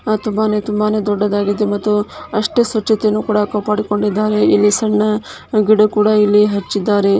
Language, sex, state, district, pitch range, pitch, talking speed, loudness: Kannada, female, Karnataka, Dharwad, 210-215 Hz, 210 Hz, 100 wpm, -15 LUFS